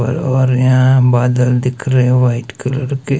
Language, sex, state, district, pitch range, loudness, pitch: Hindi, male, Himachal Pradesh, Shimla, 125-130 Hz, -13 LUFS, 130 Hz